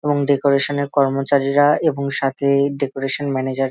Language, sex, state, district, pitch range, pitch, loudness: Bengali, male, West Bengal, Malda, 135-145 Hz, 140 Hz, -18 LUFS